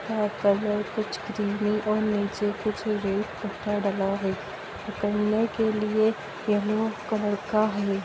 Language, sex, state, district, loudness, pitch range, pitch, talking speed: Bhojpuri, female, Bihar, Saran, -27 LUFS, 205-215 Hz, 210 Hz, 125 wpm